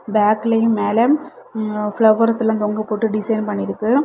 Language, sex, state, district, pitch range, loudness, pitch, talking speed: Tamil, female, Tamil Nadu, Kanyakumari, 210-230 Hz, -18 LUFS, 220 Hz, 90 wpm